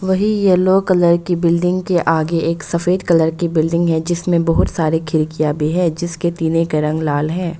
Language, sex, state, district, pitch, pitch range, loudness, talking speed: Hindi, female, Arunachal Pradesh, Longding, 170 Hz, 160-175 Hz, -16 LUFS, 195 wpm